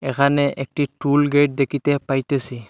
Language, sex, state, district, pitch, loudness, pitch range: Bengali, male, Assam, Hailakandi, 140 Hz, -20 LUFS, 135-145 Hz